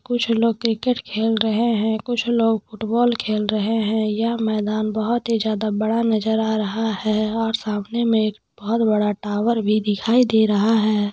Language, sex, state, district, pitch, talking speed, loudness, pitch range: Hindi, female, Bihar, Madhepura, 220 Hz, 185 wpm, -20 LUFS, 215-230 Hz